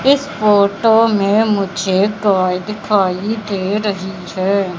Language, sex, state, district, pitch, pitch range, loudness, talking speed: Hindi, female, Madhya Pradesh, Katni, 200 Hz, 190-215 Hz, -15 LUFS, 115 wpm